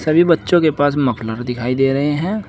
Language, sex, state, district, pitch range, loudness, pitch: Hindi, male, Uttar Pradesh, Saharanpur, 125-165 Hz, -16 LUFS, 145 Hz